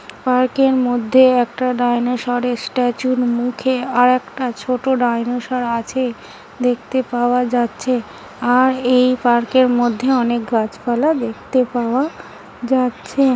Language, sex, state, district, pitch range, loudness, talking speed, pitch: Bengali, female, West Bengal, Paschim Medinipur, 240-255 Hz, -17 LUFS, 120 wpm, 250 Hz